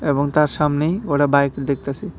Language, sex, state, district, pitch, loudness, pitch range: Bengali, male, Tripura, West Tripura, 145 Hz, -19 LUFS, 140-150 Hz